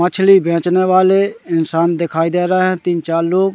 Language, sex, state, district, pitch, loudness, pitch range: Hindi, male, Madhya Pradesh, Katni, 180 Hz, -14 LUFS, 170-185 Hz